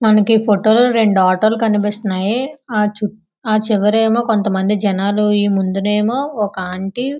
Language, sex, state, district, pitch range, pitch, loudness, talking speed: Telugu, female, Andhra Pradesh, Visakhapatnam, 200-225 Hz, 210 Hz, -15 LUFS, 165 wpm